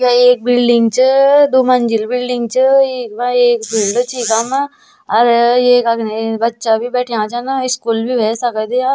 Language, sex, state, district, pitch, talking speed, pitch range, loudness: Garhwali, female, Uttarakhand, Tehri Garhwal, 245 Hz, 160 wpm, 230-255 Hz, -13 LUFS